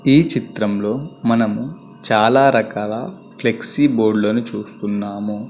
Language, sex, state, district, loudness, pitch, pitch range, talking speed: Telugu, male, Andhra Pradesh, Guntur, -18 LUFS, 110 Hz, 105-145 Hz, 100 wpm